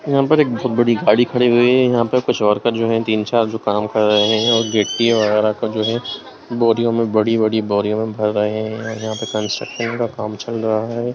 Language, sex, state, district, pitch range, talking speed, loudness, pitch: Hindi, male, Bihar, Lakhisarai, 110-120 Hz, 235 wpm, -17 LUFS, 110 Hz